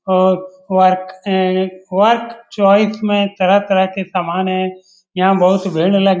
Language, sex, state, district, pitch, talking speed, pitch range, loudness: Hindi, male, Bihar, Lakhisarai, 190 Hz, 125 wpm, 185-195 Hz, -15 LUFS